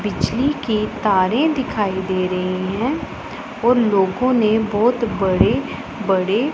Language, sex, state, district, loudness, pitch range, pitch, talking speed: Hindi, female, Punjab, Pathankot, -19 LUFS, 190-245 Hz, 215 Hz, 120 wpm